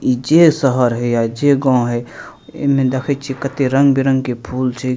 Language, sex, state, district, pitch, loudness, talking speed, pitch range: Maithili, male, Bihar, Madhepura, 130 Hz, -16 LUFS, 205 wpm, 125-140 Hz